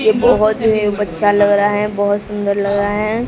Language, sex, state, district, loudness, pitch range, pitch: Hindi, female, Odisha, Sambalpur, -15 LUFS, 205-215 Hz, 205 Hz